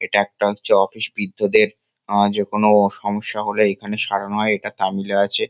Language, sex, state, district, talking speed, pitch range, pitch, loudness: Bengali, male, West Bengal, Kolkata, 165 wpm, 100-105 Hz, 105 Hz, -19 LUFS